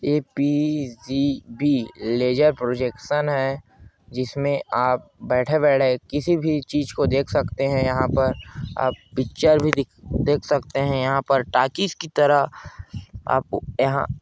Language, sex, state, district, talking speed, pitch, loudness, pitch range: Hindi, male, Chhattisgarh, Korba, 135 wpm, 135 Hz, -22 LUFS, 125-145 Hz